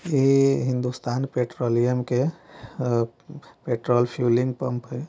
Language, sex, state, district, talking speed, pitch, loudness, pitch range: Bajjika, male, Bihar, Vaishali, 105 wpm, 125 Hz, -24 LUFS, 120-135 Hz